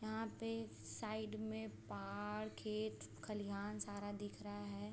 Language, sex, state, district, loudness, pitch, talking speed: Hindi, female, Bihar, Sitamarhi, -47 LUFS, 205 Hz, 135 wpm